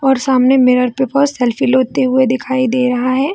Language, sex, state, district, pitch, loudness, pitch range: Hindi, female, Bihar, Jamui, 260 Hz, -13 LUFS, 250-265 Hz